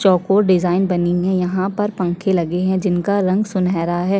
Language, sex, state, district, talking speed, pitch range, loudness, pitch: Hindi, female, Chhattisgarh, Sukma, 215 wpm, 180-195 Hz, -18 LUFS, 185 Hz